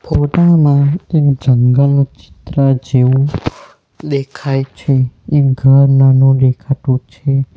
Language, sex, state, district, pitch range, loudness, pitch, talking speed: Gujarati, male, Gujarat, Valsad, 135-145 Hz, -12 LUFS, 135 Hz, 105 wpm